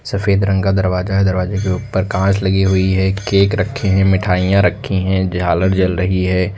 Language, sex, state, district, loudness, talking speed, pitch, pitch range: Hindi, male, Uttar Pradesh, Lucknow, -15 LUFS, 200 wpm, 95 Hz, 95-100 Hz